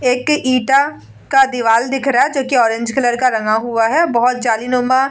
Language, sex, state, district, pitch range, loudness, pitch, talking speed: Hindi, female, Bihar, Vaishali, 235-270 Hz, -15 LUFS, 250 Hz, 210 wpm